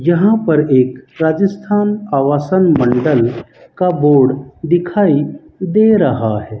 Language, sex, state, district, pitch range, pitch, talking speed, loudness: Hindi, male, Rajasthan, Bikaner, 130-190 Hz, 155 Hz, 110 wpm, -14 LUFS